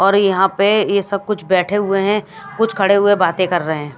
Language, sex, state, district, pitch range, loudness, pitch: Hindi, female, Odisha, Malkangiri, 185-205 Hz, -16 LUFS, 200 Hz